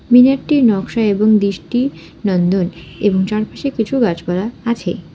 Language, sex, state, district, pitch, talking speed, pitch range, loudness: Bengali, female, West Bengal, Alipurduar, 215 Hz, 115 wpm, 190-245 Hz, -16 LUFS